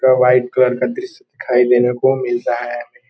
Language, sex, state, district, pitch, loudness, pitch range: Hindi, male, Bihar, Gopalganj, 125 Hz, -16 LUFS, 125-130 Hz